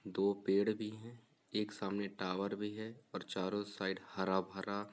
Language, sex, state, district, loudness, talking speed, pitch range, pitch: Hindi, male, Uttar Pradesh, Varanasi, -39 LUFS, 170 wpm, 95-105 Hz, 100 Hz